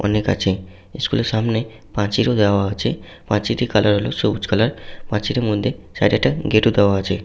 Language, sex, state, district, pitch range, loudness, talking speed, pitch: Bengali, male, West Bengal, Malda, 100-110 Hz, -19 LUFS, 190 wpm, 105 Hz